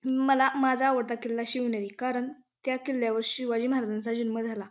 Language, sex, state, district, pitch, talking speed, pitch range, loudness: Marathi, female, Maharashtra, Pune, 245 Hz, 155 wpm, 230-260 Hz, -28 LUFS